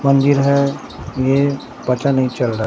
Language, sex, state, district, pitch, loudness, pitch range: Hindi, male, Bihar, Katihar, 135 Hz, -17 LUFS, 125-140 Hz